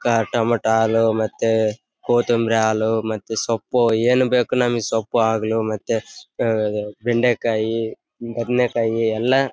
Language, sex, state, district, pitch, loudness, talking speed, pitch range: Kannada, male, Karnataka, Bellary, 115 Hz, -20 LUFS, 115 wpm, 110-120 Hz